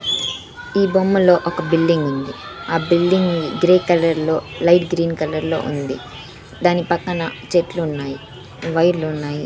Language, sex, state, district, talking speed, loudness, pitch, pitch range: Telugu, female, Andhra Pradesh, Sri Satya Sai, 125 wpm, -18 LUFS, 165 Hz, 150-175 Hz